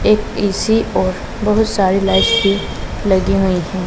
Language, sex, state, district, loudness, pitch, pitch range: Hindi, female, Punjab, Pathankot, -15 LUFS, 195 Hz, 190-215 Hz